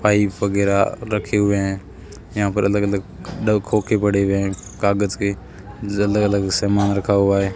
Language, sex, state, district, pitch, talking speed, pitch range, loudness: Hindi, male, Rajasthan, Bikaner, 100 Hz, 175 wpm, 100-105 Hz, -19 LUFS